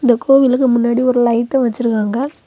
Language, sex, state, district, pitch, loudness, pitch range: Tamil, female, Tamil Nadu, Kanyakumari, 245 Hz, -14 LUFS, 235-260 Hz